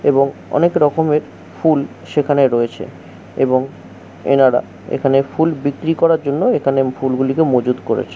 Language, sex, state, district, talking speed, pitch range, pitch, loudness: Bengali, male, West Bengal, Jhargram, 125 wpm, 130-150 Hz, 135 Hz, -16 LUFS